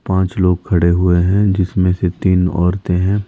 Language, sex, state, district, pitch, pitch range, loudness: Hindi, male, Himachal Pradesh, Shimla, 90 Hz, 90-95 Hz, -15 LUFS